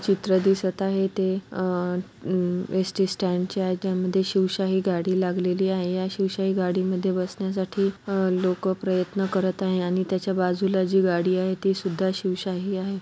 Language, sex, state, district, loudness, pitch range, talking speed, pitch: Marathi, female, Maharashtra, Solapur, -25 LUFS, 185-195 Hz, 160 wpm, 185 Hz